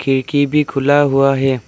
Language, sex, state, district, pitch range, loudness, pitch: Hindi, male, Arunachal Pradesh, Lower Dibang Valley, 135-145 Hz, -14 LUFS, 135 Hz